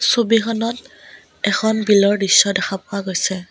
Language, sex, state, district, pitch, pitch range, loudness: Assamese, female, Assam, Kamrup Metropolitan, 200 Hz, 190-225 Hz, -17 LUFS